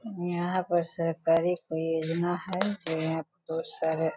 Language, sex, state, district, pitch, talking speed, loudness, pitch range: Hindi, female, Bihar, Sitamarhi, 165 Hz, 130 wpm, -30 LUFS, 160-175 Hz